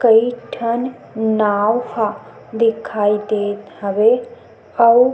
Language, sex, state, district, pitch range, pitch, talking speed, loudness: Chhattisgarhi, female, Chhattisgarh, Sukma, 210-235 Hz, 225 Hz, 105 wpm, -18 LUFS